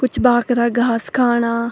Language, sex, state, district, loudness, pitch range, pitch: Garhwali, female, Uttarakhand, Tehri Garhwal, -17 LUFS, 235-245 Hz, 240 Hz